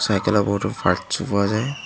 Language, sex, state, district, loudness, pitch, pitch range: Assamese, male, Assam, Hailakandi, -21 LUFS, 100 Hz, 100-110 Hz